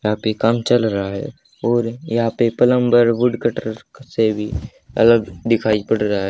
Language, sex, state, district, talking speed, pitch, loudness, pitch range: Hindi, male, Haryana, Jhajjar, 170 wpm, 115 Hz, -18 LUFS, 105-120 Hz